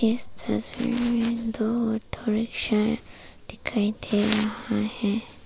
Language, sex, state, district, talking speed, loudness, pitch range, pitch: Hindi, female, Arunachal Pradesh, Papum Pare, 110 wpm, -24 LUFS, 215-235 Hz, 225 Hz